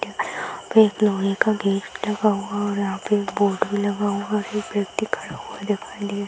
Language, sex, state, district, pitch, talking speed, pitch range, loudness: Hindi, female, Bihar, Saran, 205 Hz, 220 wpm, 200-210 Hz, -23 LUFS